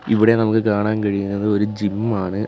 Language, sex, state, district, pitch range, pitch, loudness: Malayalam, male, Kerala, Kollam, 100-110 Hz, 105 Hz, -19 LUFS